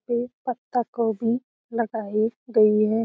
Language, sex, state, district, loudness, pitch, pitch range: Hindi, female, Bihar, Lakhisarai, -24 LUFS, 230 Hz, 220-245 Hz